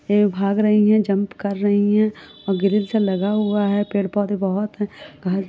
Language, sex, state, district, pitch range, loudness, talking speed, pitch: Hindi, female, Uttar Pradesh, Budaun, 195-210 Hz, -20 LUFS, 195 wpm, 205 Hz